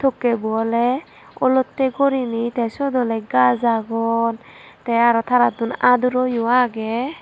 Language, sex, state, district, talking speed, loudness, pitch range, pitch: Chakma, female, Tripura, Dhalai, 135 wpm, -19 LUFS, 230-255 Hz, 235 Hz